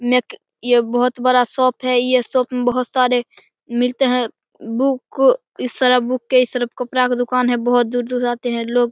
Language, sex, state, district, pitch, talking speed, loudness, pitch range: Hindi, male, Bihar, Begusarai, 250 Hz, 200 wpm, -18 LUFS, 245-255 Hz